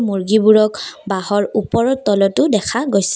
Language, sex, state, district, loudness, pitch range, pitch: Assamese, female, Assam, Kamrup Metropolitan, -15 LUFS, 200-235 Hz, 215 Hz